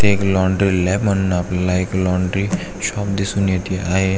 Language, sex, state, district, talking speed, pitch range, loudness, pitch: Marathi, male, Maharashtra, Aurangabad, 170 wpm, 90-100 Hz, -19 LUFS, 95 Hz